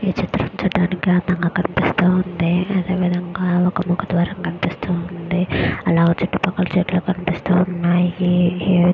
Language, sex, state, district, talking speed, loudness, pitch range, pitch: Telugu, female, Andhra Pradesh, Visakhapatnam, 100 wpm, -19 LUFS, 175-185 Hz, 180 Hz